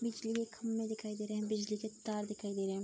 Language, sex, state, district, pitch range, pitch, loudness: Hindi, female, Bihar, Araria, 210-225 Hz, 215 Hz, -39 LUFS